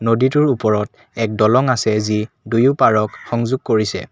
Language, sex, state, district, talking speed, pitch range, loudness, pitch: Assamese, male, Assam, Kamrup Metropolitan, 130 wpm, 110-130 Hz, -17 LUFS, 115 Hz